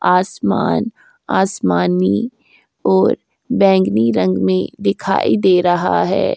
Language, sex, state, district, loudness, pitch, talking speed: Hindi, female, Uttar Pradesh, Jyotiba Phule Nagar, -16 LUFS, 180 Hz, 95 wpm